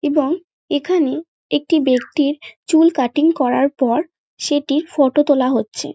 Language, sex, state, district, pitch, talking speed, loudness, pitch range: Bengali, female, West Bengal, North 24 Parganas, 295 Hz, 120 wpm, -17 LUFS, 270-320 Hz